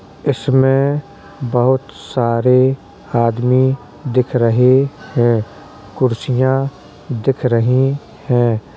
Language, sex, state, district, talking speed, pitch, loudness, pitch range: Hindi, male, Uttar Pradesh, Jalaun, 75 wpm, 130 Hz, -16 LUFS, 120-135 Hz